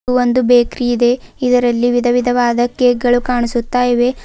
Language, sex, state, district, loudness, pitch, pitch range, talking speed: Kannada, female, Karnataka, Bidar, -14 LUFS, 245 Hz, 240-250 Hz, 140 wpm